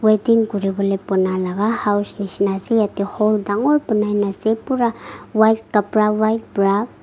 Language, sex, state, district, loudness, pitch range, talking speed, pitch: Nagamese, female, Nagaland, Kohima, -19 LUFS, 200-220 Hz, 155 wpm, 210 Hz